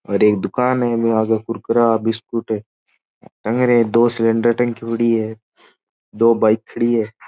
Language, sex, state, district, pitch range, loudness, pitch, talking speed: Marwari, male, Rajasthan, Churu, 110-120 Hz, -18 LUFS, 115 Hz, 175 wpm